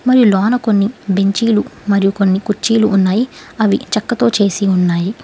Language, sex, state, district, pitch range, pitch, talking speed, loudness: Telugu, female, Telangana, Hyderabad, 195-230 Hz, 205 Hz, 135 wpm, -14 LUFS